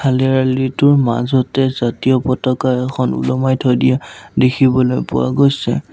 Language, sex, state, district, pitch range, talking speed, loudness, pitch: Assamese, male, Assam, Sonitpur, 125-130 Hz, 100 wpm, -15 LUFS, 130 Hz